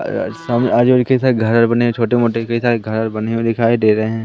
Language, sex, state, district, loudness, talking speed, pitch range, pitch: Hindi, male, Madhya Pradesh, Katni, -15 LUFS, 255 wpm, 110-120 Hz, 115 Hz